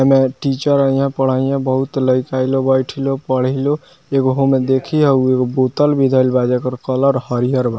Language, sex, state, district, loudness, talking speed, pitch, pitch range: Bhojpuri, male, Bihar, Muzaffarpur, -16 LUFS, 200 wpm, 130 Hz, 130-135 Hz